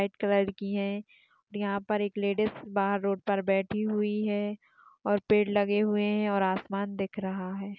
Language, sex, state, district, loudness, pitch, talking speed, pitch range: Hindi, female, Maharashtra, Sindhudurg, -29 LUFS, 205 Hz, 175 wpm, 200-210 Hz